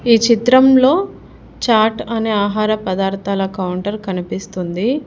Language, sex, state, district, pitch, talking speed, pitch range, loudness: Telugu, female, Telangana, Hyderabad, 215 Hz, 95 wpm, 195-235 Hz, -16 LUFS